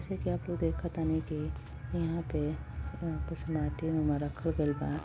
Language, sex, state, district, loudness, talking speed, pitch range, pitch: Bhojpuri, female, Uttar Pradesh, Gorakhpur, -34 LUFS, 165 wpm, 145-160 Hz, 155 Hz